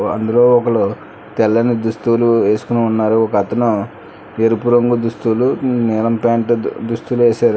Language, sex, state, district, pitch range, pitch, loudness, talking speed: Telugu, male, Telangana, Hyderabad, 110-120 Hz, 115 Hz, -15 LUFS, 110 wpm